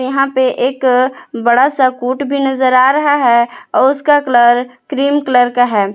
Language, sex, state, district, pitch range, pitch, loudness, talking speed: Hindi, female, Jharkhand, Palamu, 245-275 Hz, 260 Hz, -12 LUFS, 180 wpm